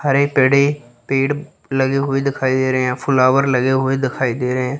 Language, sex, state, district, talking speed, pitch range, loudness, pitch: Hindi, female, Chandigarh, Chandigarh, 200 wpm, 130-140 Hz, -17 LUFS, 135 Hz